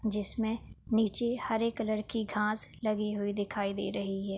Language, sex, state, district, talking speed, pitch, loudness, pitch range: Hindi, female, Uttar Pradesh, Budaun, 165 wpm, 215 Hz, -33 LUFS, 205-225 Hz